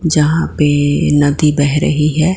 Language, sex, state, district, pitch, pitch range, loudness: Hindi, female, Gujarat, Gandhinagar, 150 Hz, 145-160 Hz, -13 LUFS